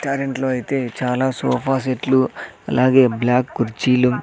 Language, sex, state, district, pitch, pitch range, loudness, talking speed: Telugu, male, Andhra Pradesh, Sri Satya Sai, 130 Hz, 125-135 Hz, -19 LUFS, 115 wpm